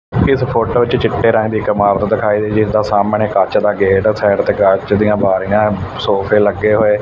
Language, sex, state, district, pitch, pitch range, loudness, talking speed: Punjabi, male, Punjab, Fazilka, 105 Hz, 100-110 Hz, -13 LUFS, 215 wpm